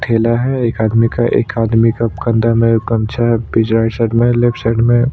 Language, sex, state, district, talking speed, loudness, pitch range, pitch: Hindi, male, Chhattisgarh, Sukma, 220 wpm, -14 LUFS, 115-120 Hz, 115 Hz